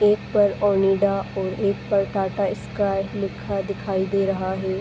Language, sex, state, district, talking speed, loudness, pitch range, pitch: Hindi, female, Uttar Pradesh, Muzaffarnagar, 160 wpm, -23 LUFS, 195-200 Hz, 195 Hz